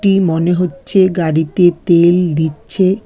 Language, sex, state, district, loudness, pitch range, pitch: Bengali, female, West Bengal, Alipurduar, -13 LUFS, 165-190 Hz, 175 Hz